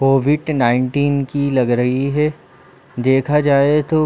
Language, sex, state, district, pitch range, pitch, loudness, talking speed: Hindi, female, Chhattisgarh, Bilaspur, 130-150 Hz, 140 Hz, -16 LUFS, 135 wpm